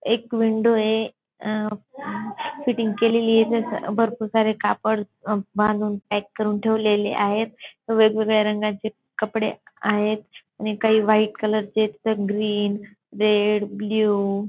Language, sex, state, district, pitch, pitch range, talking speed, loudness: Marathi, female, Maharashtra, Dhule, 215 Hz, 210-220 Hz, 120 wpm, -22 LUFS